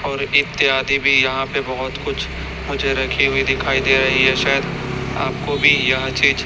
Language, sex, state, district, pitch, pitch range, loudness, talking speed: Hindi, male, Chhattisgarh, Raipur, 135 Hz, 130-140 Hz, -17 LUFS, 175 wpm